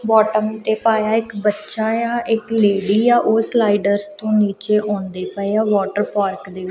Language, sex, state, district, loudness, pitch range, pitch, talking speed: Punjabi, female, Punjab, Kapurthala, -18 LUFS, 200-220 Hz, 210 Hz, 190 wpm